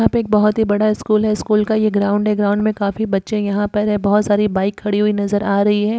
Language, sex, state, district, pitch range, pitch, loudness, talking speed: Hindi, female, Uttar Pradesh, Muzaffarnagar, 205-215 Hz, 210 Hz, -17 LUFS, 290 wpm